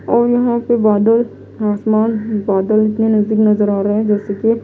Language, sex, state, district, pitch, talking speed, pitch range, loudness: Hindi, female, Himachal Pradesh, Shimla, 215 Hz, 195 wpm, 210-225 Hz, -15 LUFS